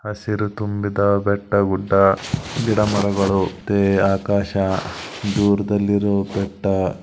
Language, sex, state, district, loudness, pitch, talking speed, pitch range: Kannada, male, Karnataka, Belgaum, -20 LUFS, 100 Hz, 60 wpm, 95-105 Hz